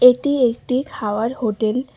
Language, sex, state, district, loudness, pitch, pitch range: Bengali, female, West Bengal, Alipurduar, -20 LUFS, 245 Hz, 220-255 Hz